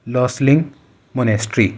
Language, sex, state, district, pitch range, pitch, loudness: Hindi, male, Uttar Pradesh, Ghazipur, 110-140 Hz, 125 Hz, -17 LUFS